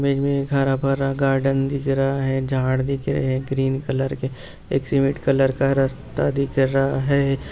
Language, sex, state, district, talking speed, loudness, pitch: Hindi, male, Bihar, Gaya, 175 wpm, -21 LUFS, 135 Hz